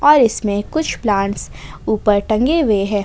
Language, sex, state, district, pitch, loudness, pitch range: Hindi, female, Jharkhand, Ranchi, 215 Hz, -16 LUFS, 205-250 Hz